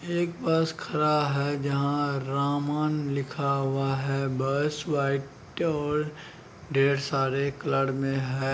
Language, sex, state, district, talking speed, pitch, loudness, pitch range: Hindi, male, Bihar, Araria, 120 wpm, 140 Hz, -27 LUFS, 135-150 Hz